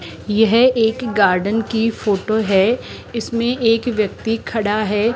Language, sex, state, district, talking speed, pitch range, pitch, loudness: Hindi, female, Rajasthan, Jaipur, 130 wpm, 210-230 Hz, 225 Hz, -17 LUFS